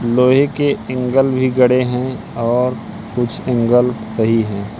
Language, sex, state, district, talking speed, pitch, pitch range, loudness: Hindi, male, Madhya Pradesh, Katni, 135 wpm, 125 Hz, 115-130 Hz, -16 LUFS